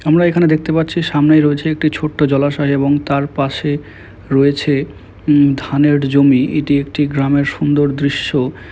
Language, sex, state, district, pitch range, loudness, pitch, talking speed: Bengali, male, West Bengal, Malda, 140-150 Hz, -14 LUFS, 145 Hz, 140 wpm